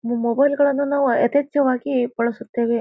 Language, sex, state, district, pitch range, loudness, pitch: Kannada, female, Karnataka, Bijapur, 235-280 Hz, -20 LUFS, 255 Hz